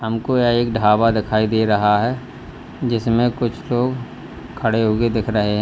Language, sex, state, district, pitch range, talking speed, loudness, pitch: Hindi, male, Uttar Pradesh, Lalitpur, 110-120 Hz, 170 wpm, -18 LUFS, 115 Hz